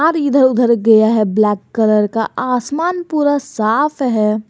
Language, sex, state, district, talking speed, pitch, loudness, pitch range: Hindi, male, Jharkhand, Garhwa, 145 wpm, 235 Hz, -14 LUFS, 215-285 Hz